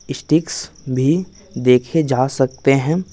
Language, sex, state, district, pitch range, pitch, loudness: Hindi, male, Bihar, West Champaran, 130-160 Hz, 135 Hz, -17 LUFS